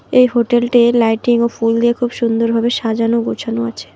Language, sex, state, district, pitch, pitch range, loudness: Bengali, female, West Bengal, Alipurduar, 235 Hz, 230-240 Hz, -15 LUFS